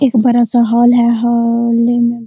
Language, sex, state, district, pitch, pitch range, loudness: Hindi, female, Bihar, Araria, 235 Hz, 235-240 Hz, -12 LUFS